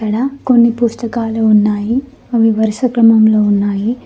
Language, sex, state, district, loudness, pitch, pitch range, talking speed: Telugu, female, Telangana, Mahabubabad, -13 LUFS, 225 Hz, 215-240 Hz, 120 wpm